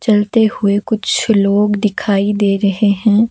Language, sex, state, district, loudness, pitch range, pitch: Hindi, female, Himachal Pradesh, Shimla, -14 LUFS, 200-220 Hz, 210 Hz